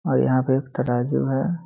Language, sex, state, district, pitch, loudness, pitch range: Hindi, male, Bihar, Muzaffarpur, 130 Hz, -22 LUFS, 125-140 Hz